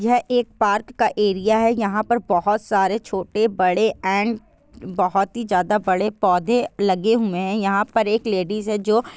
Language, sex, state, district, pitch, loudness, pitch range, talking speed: Hindi, female, Bihar, Jahanabad, 210 Hz, -20 LUFS, 195-225 Hz, 170 wpm